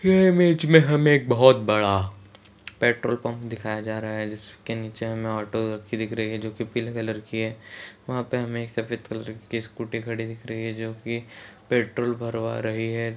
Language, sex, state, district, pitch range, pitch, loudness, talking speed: Marathi, male, Maharashtra, Sindhudurg, 110-120 Hz, 115 Hz, -25 LUFS, 190 wpm